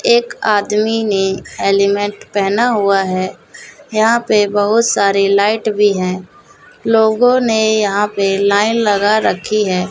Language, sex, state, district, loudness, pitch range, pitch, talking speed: Hindi, female, Chhattisgarh, Raipur, -14 LUFS, 200-220 Hz, 210 Hz, 135 wpm